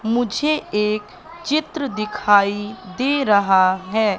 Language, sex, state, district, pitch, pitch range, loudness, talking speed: Hindi, female, Madhya Pradesh, Katni, 215 Hz, 205-280 Hz, -19 LUFS, 100 wpm